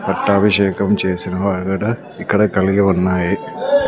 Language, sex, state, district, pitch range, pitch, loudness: Telugu, male, Andhra Pradesh, Sri Satya Sai, 95-105 Hz, 100 Hz, -17 LUFS